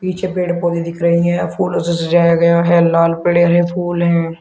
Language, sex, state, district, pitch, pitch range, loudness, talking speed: Hindi, male, Uttar Pradesh, Shamli, 170 Hz, 170-175 Hz, -14 LUFS, 220 wpm